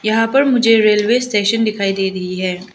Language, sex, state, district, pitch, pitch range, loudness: Hindi, female, Arunachal Pradesh, Lower Dibang Valley, 215 Hz, 195-225 Hz, -15 LUFS